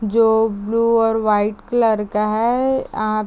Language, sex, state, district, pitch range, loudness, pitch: Hindi, female, Chhattisgarh, Raigarh, 215-230 Hz, -18 LUFS, 220 Hz